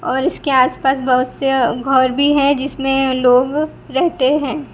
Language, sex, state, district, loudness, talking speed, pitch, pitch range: Hindi, female, Gujarat, Gandhinagar, -15 LUFS, 165 wpm, 270 Hz, 260-285 Hz